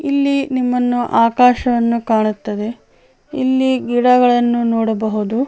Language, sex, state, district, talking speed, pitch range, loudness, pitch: Kannada, female, Karnataka, Chamarajanagar, 75 wpm, 230-255 Hz, -15 LUFS, 245 Hz